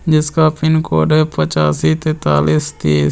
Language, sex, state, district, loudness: Hindi, male, Bihar, Purnia, -14 LUFS